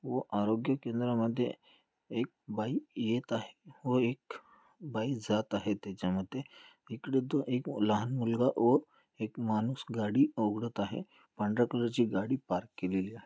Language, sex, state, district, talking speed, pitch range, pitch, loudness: Marathi, male, Maharashtra, Dhule, 130 wpm, 105-130 Hz, 120 Hz, -33 LUFS